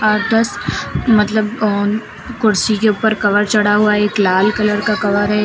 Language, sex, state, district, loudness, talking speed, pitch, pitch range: Hindi, female, Uttar Pradesh, Lucknow, -15 LUFS, 155 wpm, 210 Hz, 205-215 Hz